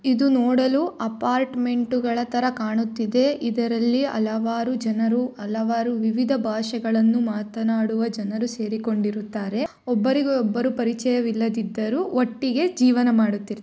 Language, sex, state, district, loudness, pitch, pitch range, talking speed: Kannada, female, Karnataka, Mysore, -23 LUFS, 235 Hz, 220-250 Hz, 100 wpm